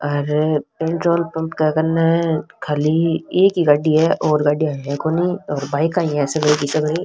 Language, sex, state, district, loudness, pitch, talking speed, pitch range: Rajasthani, female, Rajasthan, Nagaur, -18 LUFS, 155 Hz, 180 wpm, 150-165 Hz